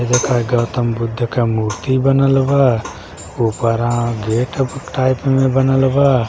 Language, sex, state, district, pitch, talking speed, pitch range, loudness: Bhojpuri, male, Uttar Pradesh, Gorakhpur, 120 Hz, 125 wpm, 115-135 Hz, -16 LUFS